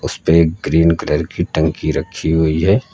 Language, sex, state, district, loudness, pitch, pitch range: Hindi, male, Uttar Pradesh, Lucknow, -16 LUFS, 80 Hz, 80-85 Hz